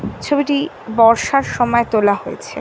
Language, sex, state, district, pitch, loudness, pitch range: Bengali, female, West Bengal, North 24 Parganas, 235 Hz, -16 LUFS, 230-285 Hz